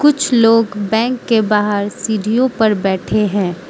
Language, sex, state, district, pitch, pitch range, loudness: Hindi, female, Mizoram, Aizawl, 215 Hz, 205-230 Hz, -15 LUFS